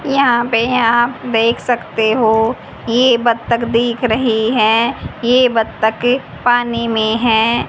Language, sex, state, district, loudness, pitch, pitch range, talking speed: Hindi, female, Haryana, Jhajjar, -14 LUFS, 235 Hz, 225-245 Hz, 125 wpm